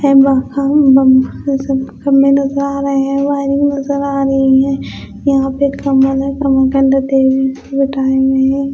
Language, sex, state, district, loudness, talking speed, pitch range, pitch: Hindi, female, Bihar, Katihar, -13 LUFS, 105 wpm, 270-275 Hz, 275 Hz